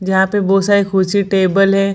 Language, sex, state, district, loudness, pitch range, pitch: Hindi, female, Bihar, Lakhisarai, -14 LUFS, 190-200 Hz, 195 Hz